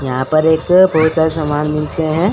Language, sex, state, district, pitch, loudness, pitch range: Hindi, male, Chandigarh, Chandigarh, 160 Hz, -14 LUFS, 150-160 Hz